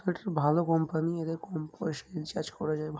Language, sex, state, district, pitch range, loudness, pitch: Bengali, male, West Bengal, Kolkata, 155-165 Hz, -32 LUFS, 160 Hz